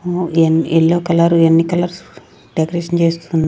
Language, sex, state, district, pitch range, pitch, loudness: Telugu, female, Andhra Pradesh, Sri Satya Sai, 165-175 Hz, 170 Hz, -15 LUFS